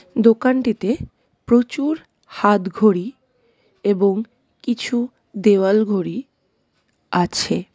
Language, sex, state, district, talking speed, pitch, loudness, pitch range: Bengali, female, West Bengal, Darjeeling, 60 wpm, 225 Hz, -19 LUFS, 200-245 Hz